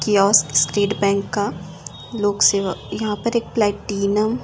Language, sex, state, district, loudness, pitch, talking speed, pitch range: Hindi, female, Delhi, New Delhi, -19 LUFS, 205 Hz, 135 wpm, 190-210 Hz